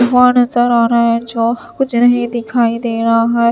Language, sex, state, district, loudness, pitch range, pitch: Hindi, female, Himachal Pradesh, Shimla, -13 LUFS, 230-245 Hz, 235 Hz